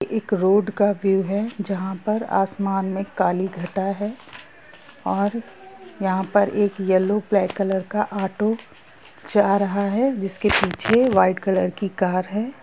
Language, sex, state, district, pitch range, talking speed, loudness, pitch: Hindi, female, Bihar, Gopalganj, 190-210 Hz, 140 wpm, -22 LUFS, 200 Hz